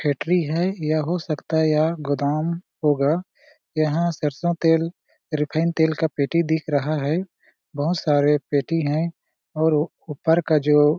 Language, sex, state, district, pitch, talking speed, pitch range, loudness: Hindi, male, Chhattisgarh, Balrampur, 155 Hz, 145 wpm, 150-165 Hz, -22 LUFS